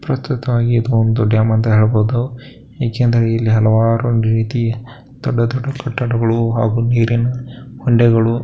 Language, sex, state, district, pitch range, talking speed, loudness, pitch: Kannada, male, Karnataka, Bellary, 115-125 Hz, 120 wpm, -16 LUFS, 115 Hz